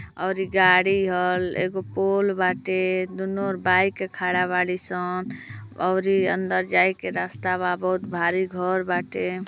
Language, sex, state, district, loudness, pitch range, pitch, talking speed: Hindi, female, Uttar Pradesh, Gorakhpur, -23 LUFS, 180-190 Hz, 185 Hz, 135 wpm